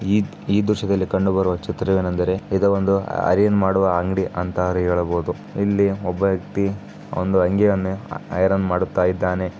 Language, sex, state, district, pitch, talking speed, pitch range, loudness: Kannada, male, Karnataka, Bijapur, 95 Hz, 125 wpm, 90-100 Hz, -20 LUFS